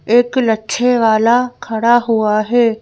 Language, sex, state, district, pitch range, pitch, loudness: Hindi, female, Madhya Pradesh, Bhopal, 220-245 Hz, 235 Hz, -14 LUFS